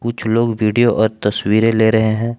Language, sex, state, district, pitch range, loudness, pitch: Hindi, male, Jharkhand, Palamu, 110-115 Hz, -15 LUFS, 110 Hz